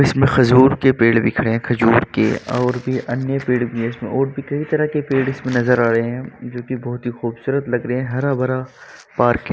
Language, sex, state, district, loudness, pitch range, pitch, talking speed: Hindi, male, Uttar Pradesh, Varanasi, -18 LUFS, 120-135 Hz, 125 Hz, 240 wpm